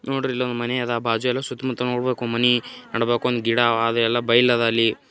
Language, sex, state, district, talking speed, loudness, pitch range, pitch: Kannada, male, Karnataka, Gulbarga, 225 wpm, -21 LUFS, 115-125 Hz, 120 Hz